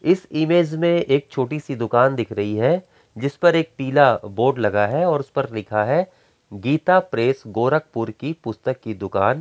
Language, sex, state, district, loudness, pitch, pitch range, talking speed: Hindi, male, Bihar, Gaya, -20 LUFS, 135 Hz, 110-155 Hz, 180 wpm